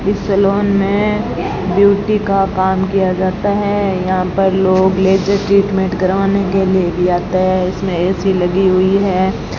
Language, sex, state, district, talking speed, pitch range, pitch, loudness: Hindi, female, Rajasthan, Bikaner, 155 wpm, 185-200 Hz, 190 Hz, -14 LUFS